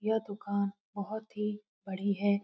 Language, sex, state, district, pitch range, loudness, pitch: Hindi, female, Bihar, Lakhisarai, 200-210 Hz, -35 LUFS, 205 Hz